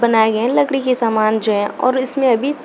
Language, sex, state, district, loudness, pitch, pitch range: Hindi, female, Uttar Pradesh, Shamli, -16 LUFS, 240 Hz, 220-260 Hz